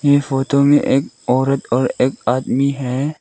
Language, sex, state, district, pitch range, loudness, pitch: Hindi, male, Arunachal Pradesh, Lower Dibang Valley, 130-140 Hz, -17 LUFS, 135 Hz